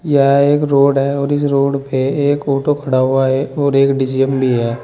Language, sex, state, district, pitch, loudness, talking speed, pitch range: Hindi, male, Uttar Pradesh, Saharanpur, 140 Hz, -14 LUFS, 225 wpm, 135-145 Hz